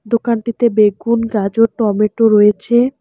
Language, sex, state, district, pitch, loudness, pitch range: Bengali, female, West Bengal, Alipurduar, 230 Hz, -14 LUFS, 210-235 Hz